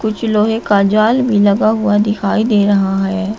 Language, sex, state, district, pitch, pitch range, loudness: Hindi, female, Uttar Pradesh, Shamli, 210 Hz, 205-220 Hz, -13 LUFS